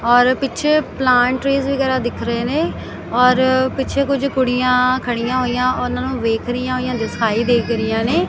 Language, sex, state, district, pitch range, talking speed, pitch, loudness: Punjabi, female, Punjab, Kapurthala, 240-260 Hz, 165 wpm, 250 Hz, -17 LUFS